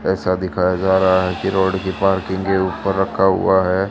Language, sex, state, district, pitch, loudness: Hindi, female, Haryana, Charkhi Dadri, 95 Hz, -17 LUFS